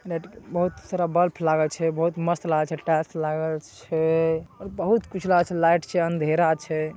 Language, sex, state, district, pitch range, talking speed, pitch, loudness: Maithili, male, Bihar, Saharsa, 160-175 Hz, 205 wpm, 165 Hz, -24 LUFS